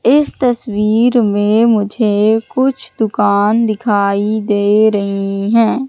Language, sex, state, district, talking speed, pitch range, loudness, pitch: Hindi, female, Madhya Pradesh, Katni, 100 wpm, 205-235 Hz, -13 LUFS, 215 Hz